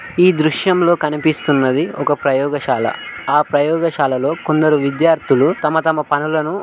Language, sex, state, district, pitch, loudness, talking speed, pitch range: Telugu, male, Telangana, Karimnagar, 155 Hz, -16 LUFS, 120 wpm, 145-160 Hz